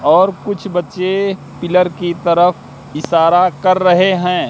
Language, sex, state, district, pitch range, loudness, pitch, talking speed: Hindi, male, Madhya Pradesh, Katni, 175-185 Hz, -14 LUFS, 180 Hz, 135 wpm